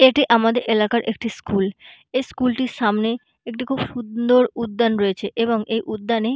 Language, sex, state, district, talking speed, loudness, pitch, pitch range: Bengali, female, West Bengal, Malda, 160 wpm, -21 LUFS, 230 Hz, 220-245 Hz